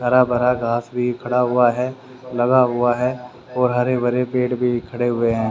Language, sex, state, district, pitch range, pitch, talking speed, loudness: Hindi, male, Haryana, Rohtak, 120-125 Hz, 125 Hz, 195 wpm, -19 LUFS